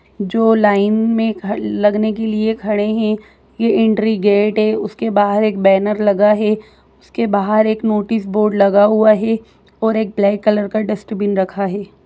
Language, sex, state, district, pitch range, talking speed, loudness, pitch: Hindi, female, Bihar, Jahanabad, 205-220 Hz, 180 wpm, -15 LUFS, 215 Hz